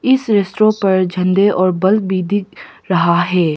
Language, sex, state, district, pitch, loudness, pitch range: Hindi, female, Arunachal Pradesh, Papum Pare, 190 Hz, -15 LUFS, 180-205 Hz